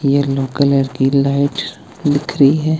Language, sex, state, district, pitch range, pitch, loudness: Hindi, male, Himachal Pradesh, Shimla, 140-145 Hz, 140 Hz, -15 LUFS